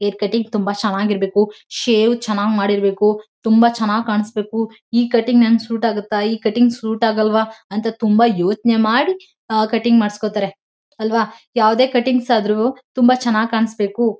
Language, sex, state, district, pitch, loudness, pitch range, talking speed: Kannada, female, Karnataka, Mysore, 220 Hz, -17 LUFS, 210-235 Hz, 145 wpm